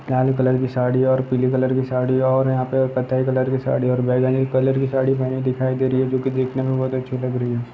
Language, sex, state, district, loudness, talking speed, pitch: Hindi, male, Bihar, Vaishali, -20 LUFS, 255 wpm, 130 Hz